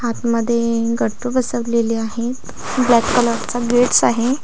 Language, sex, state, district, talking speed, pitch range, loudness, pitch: Marathi, female, Maharashtra, Aurangabad, 110 wpm, 230-245 Hz, -17 LUFS, 235 Hz